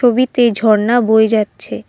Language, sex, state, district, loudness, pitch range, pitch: Bengali, female, Assam, Kamrup Metropolitan, -13 LUFS, 215-245 Hz, 220 Hz